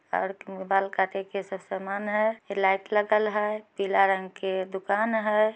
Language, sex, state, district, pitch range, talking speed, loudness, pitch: Magahi, female, Bihar, Samastipur, 190-210 Hz, 150 wpm, -27 LUFS, 195 Hz